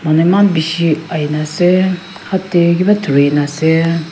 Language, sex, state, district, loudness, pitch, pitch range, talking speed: Nagamese, female, Nagaland, Kohima, -13 LUFS, 165 Hz, 155-185 Hz, 175 wpm